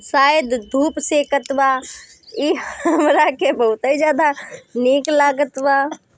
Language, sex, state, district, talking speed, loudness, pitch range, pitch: Bhojpuri, female, Bihar, Gopalganj, 125 wpm, -17 LUFS, 270-300 Hz, 280 Hz